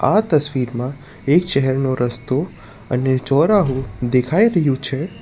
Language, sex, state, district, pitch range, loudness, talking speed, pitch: Gujarati, male, Gujarat, Valsad, 130-155 Hz, -18 LUFS, 115 wpm, 135 Hz